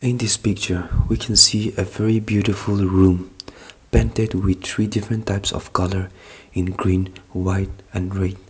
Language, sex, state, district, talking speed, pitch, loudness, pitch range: English, male, Nagaland, Kohima, 155 wpm, 100 Hz, -20 LUFS, 95-110 Hz